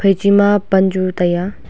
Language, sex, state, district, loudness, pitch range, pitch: Wancho, female, Arunachal Pradesh, Longding, -14 LUFS, 185-200 Hz, 190 Hz